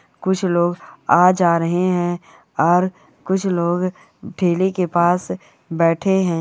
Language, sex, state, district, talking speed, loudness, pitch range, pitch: Hindi, female, Bihar, Bhagalpur, 130 wpm, -18 LUFS, 170-185 Hz, 175 Hz